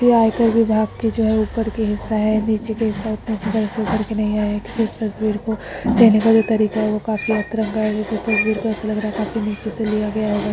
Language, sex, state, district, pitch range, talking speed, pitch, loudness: Hindi, female, Bihar, Samastipur, 215-220 Hz, 270 wpm, 220 Hz, -19 LUFS